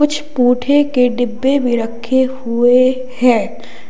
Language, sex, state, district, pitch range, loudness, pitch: Hindi, male, Uttar Pradesh, Lalitpur, 245-260 Hz, -14 LUFS, 250 Hz